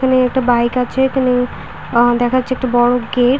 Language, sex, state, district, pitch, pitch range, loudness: Bengali, female, West Bengal, Purulia, 250 Hz, 245-255 Hz, -15 LUFS